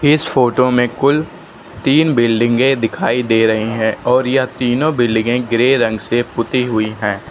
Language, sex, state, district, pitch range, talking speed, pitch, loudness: Hindi, male, Uttar Pradesh, Lucknow, 115-130 Hz, 165 wpm, 120 Hz, -15 LUFS